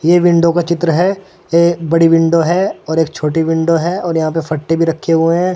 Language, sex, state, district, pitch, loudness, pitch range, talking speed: Hindi, male, Uttar Pradesh, Saharanpur, 165 Hz, -13 LUFS, 165-175 Hz, 235 wpm